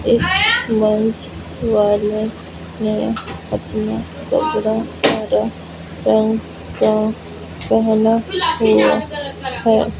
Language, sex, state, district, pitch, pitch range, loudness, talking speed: Hindi, female, Punjab, Fazilka, 220 Hz, 215-225 Hz, -17 LUFS, 70 wpm